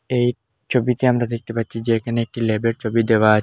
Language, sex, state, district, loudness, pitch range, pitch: Bengali, male, Assam, Hailakandi, -20 LUFS, 115-120 Hz, 115 Hz